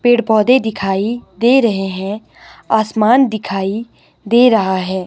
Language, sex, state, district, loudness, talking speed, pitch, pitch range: Hindi, female, Himachal Pradesh, Shimla, -14 LUFS, 130 wpm, 220 Hz, 195-240 Hz